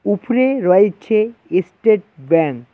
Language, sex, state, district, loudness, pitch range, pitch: Bengali, male, West Bengal, Cooch Behar, -16 LUFS, 170-220 Hz, 200 Hz